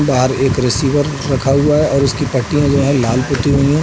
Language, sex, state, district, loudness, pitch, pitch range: Hindi, male, Uttar Pradesh, Budaun, -14 LUFS, 140 Hz, 130-145 Hz